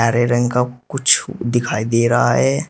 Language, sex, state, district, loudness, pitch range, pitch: Hindi, male, Uttar Pradesh, Shamli, -17 LUFS, 120-125 Hz, 120 Hz